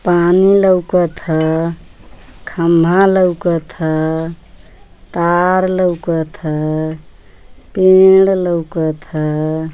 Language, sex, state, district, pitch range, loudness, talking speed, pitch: Bhojpuri, female, Uttar Pradesh, Ghazipur, 155-180 Hz, -14 LUFS, 75 wpm, 170 Hz